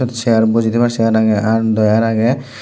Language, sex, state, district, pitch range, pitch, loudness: Chakma, male, Tripura, Dhalai, 110-115 Hz, 115 Hz, -14 LUFS